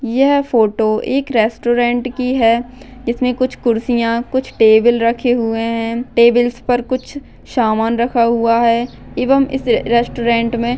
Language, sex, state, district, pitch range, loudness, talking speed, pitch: Hindi, female, Maharashtra, Solapur, 230-255 Hz, -15 LUFS, 145 wpm, 240 Hz